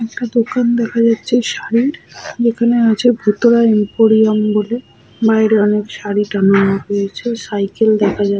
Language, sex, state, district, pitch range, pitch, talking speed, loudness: Bengali, female, West Bengal, Paschim Medinipur, 210-235 Hz, 220 Hz, 130 wpm, -14 LUFS